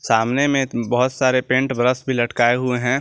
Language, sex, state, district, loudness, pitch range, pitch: Hindi, male, Jharkhand, Garhwa, -19 LUFS, 120-130 Hz, 125 Hz